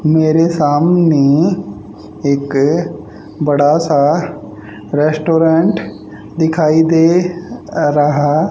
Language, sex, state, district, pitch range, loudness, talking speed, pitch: Hindi, male, Haryana, Rohtak, 140-165 Hz, -13 LUFS, 65 wpm, 150 Hz